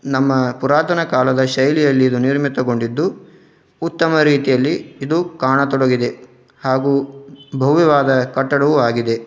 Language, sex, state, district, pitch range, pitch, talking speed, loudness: Kannada, male, Karnataka, Dharwad, 130-145 Hz, 135 Hz, 90 wpm, -16 LUFS